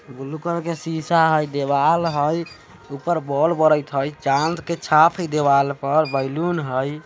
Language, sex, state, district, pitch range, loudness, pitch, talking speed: Hindi, male, Bihar, Vaishali, 140-165 Hz, -20 LUFS, 155 Hz, 170 wpm